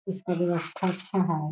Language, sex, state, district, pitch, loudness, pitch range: Hindi, female, Bihar, Gaya, 180 Hz, -28 LUFS, 170-185 Hz